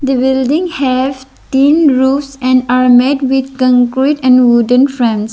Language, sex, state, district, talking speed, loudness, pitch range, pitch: English, female, Arunachal Pradesh, Lower Dibang Valley, 145 wpm, -11 LUFS, 255-275 Hz, 260 Hz